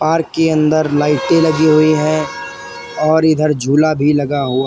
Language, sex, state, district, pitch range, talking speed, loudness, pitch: Hindi, male, Uttar Pradesh, Lalitpur, 145-155 Hz, 165 wpm, -13 LUFS, 155 Hz